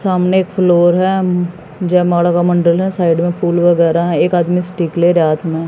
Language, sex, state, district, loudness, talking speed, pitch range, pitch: Hindi, female, Haryana, Jhajjar, -13 LUFS, 210 wpm, 170-180 Hz, 175 Hz